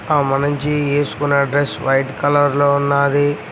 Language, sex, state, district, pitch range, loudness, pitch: Telugu, male, Telangana, Mahabubabad, 140-145 Hz, -16 LUFS, 145 Hz